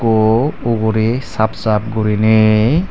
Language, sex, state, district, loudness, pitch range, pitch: Chakma, male, Tripura, Dhalai, -14 LUFS, 110-115 Hz, 110 Hz